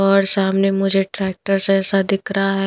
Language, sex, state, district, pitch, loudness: Hindi, female, Punjab, Pathankot, 195 Hz, -17 LUFS